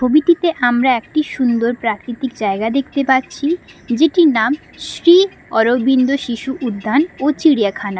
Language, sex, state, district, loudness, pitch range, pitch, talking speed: Bengali, female, West Bengal, Paschim Medinipur, -16 LUFS, 235-300 Hz, 260 Hz, 120 wpm